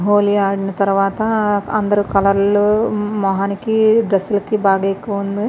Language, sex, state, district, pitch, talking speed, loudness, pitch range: Telugu, female, Andhra Pradesh, Visakhapatnam, 205 Hz, 120 wpm, -16 LUFS, 195-215 Hz